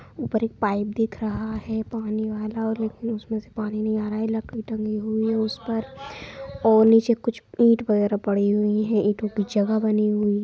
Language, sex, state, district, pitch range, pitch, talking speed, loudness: Angika, female, Bihar, Supaul, 210-225 Hz, 220 Hz, 195 wpm, -23 LUFS